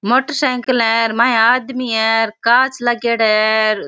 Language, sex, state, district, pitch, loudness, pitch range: Rajasthani, female, Rajasthan, Churu, 235 Hz, -15 LUFS, 225-255 Hz